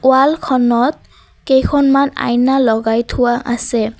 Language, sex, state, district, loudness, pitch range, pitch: Assamese, female, Assam, Kamrup Metropolitan, -14 LUFS, 240-270 Hz, 255 Hz